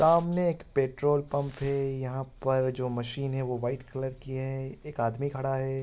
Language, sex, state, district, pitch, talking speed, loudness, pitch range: Hindi, male, Uttarakhand, Tehri Garhwal, 135 Hz, 195 wpm, -30 LUFS, 130-140 Hz